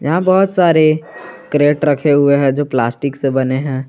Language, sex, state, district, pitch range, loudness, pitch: Hindi, male, Jharkhand, Garhwa, 135-155 Hz, -14 LUFS, 145 Hz